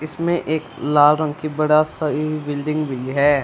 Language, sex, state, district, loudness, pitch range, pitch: Hindi, female, Punjab, Fazilka, -19 LUFS, 145-155 Hz, 150 Hz